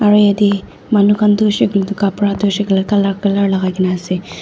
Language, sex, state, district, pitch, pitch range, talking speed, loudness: Nagamese, female, Nagaland, Dimapur, 200 Hz, 195-205 Hz, 230 wpm, -14 LUFS